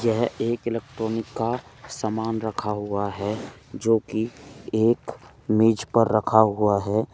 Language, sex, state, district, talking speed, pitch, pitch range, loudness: Hindi, male, Uttar Pradesh, Saharanpur, 125 wpm, 110 Hz, 110-115 Hz, -24 LUFS